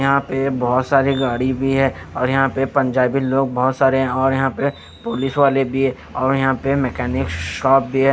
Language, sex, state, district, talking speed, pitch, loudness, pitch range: Hindi, male, Chandigarh, Chandigarh, 205 wpm, 135 Hz, -18 LUFS, 130-135 Hz